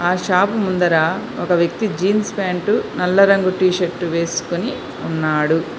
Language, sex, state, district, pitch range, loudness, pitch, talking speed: Telugu, female, Telangana, Hyderabad, 170-195 Hz, -18 LUFS, 180 Hz, 135 wpm